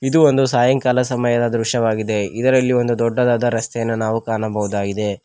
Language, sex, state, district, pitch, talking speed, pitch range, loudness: Kannada, male, Karnataka, Koppal, 120 Hz, 125 wpm, 110-125 Hz, -18 LUFS